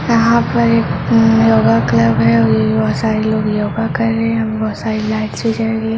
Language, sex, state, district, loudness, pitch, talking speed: Hindi, male, Bihar, Sitamarhi, -14 LUFS, 115 Hz, 220 wpm